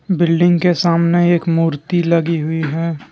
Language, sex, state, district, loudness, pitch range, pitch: Hindi, male, Jharkhand, Deoghar, -15 LUFS, 165-175 Hz, 170 Hz